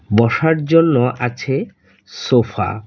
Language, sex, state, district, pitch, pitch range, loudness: Bengali, male, West Bengal, Cooch Behar, 125 Hz, 115-150 Hz, -16 LUFS